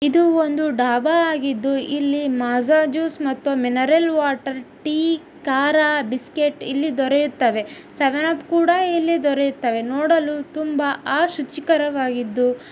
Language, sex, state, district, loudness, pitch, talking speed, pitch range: Kannada, female, Karnataka, Dharwad, -20 LUFS, 290 Hz, 115 wpm, 270-315 Hz